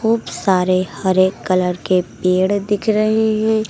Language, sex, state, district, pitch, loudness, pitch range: Hindi, female, Uttar Pradesh, Lucknow, 190 Hz, -17 LUFS, 185-215 Hz